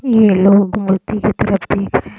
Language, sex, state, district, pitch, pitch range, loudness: Hindi, female, Bihar, Gaya, 205 Hz, 195-215 Hz, -14 LUFS